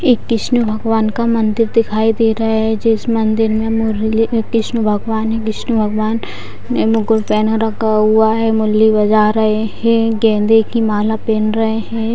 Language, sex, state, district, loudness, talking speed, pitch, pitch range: Hindi, female, Bihar, Purnia, -15 LUFS, 165 wpm, 220 Hz, 215-225 Hz